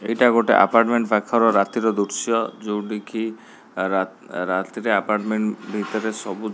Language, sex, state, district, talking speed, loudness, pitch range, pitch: Odia, male, Odisha, Khordha, 120 wpm, -21 LUFS, 105-115 Hz, 110 Hz